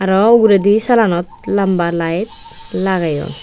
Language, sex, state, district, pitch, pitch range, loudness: Chakma, female, Tripura, West Tripura, 195 Hz, 175-225 Hz, -14 LUFS